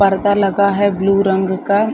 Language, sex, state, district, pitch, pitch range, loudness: Hindi, female, Bihar, Madhepura, 200 Hz, 195-200 Hz, -15 LUFS